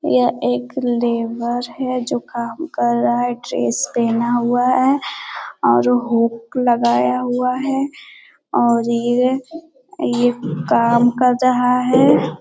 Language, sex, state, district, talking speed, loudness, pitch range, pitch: Hindi, female, Bihar, Jamui, 110 wpm, -17 LUFS, 235-255 Hz, 245 Hz